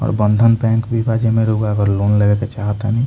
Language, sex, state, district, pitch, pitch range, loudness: Bhojpuri, male, Bihar, Muzaffarpur, 110 Hz, 105-115 Hz, -16 LUFS